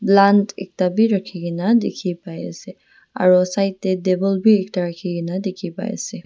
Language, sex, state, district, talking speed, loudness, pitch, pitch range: Nagamese, female, Nagaland, Dimapur, 180 wpm, -19 LUFS, 190 Hz, 180-200 Hz